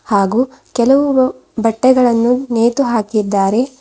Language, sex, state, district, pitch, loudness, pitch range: Kannada, female, Karnataka, Bidar, 235 Hz, -14 LUFS, 220-255 Hz